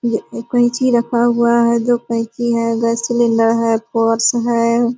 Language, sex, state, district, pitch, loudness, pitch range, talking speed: Hindi, female, Bihar, Purnia, 235 Hz, -15 LUFS, 230-240 Hz, 145 wpm